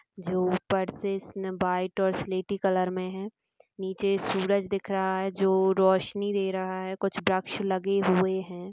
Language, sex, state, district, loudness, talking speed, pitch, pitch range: Hindi, female, Bihar, Jamui, -28 LUFS, 170 wpm, 190 Hz, 185-195 Hz